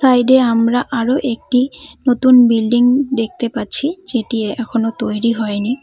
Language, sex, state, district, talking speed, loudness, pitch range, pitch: Bengali, female, West Bengal, Cooch Behar, 125 wpm, -15 LUFS, 230-255 Hz, 240 Hz